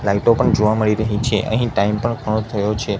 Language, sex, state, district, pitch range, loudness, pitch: Gujarati, male, Gujarat, Gandhinagar, 105-110 Hz, -18 LUFS, 110 Hz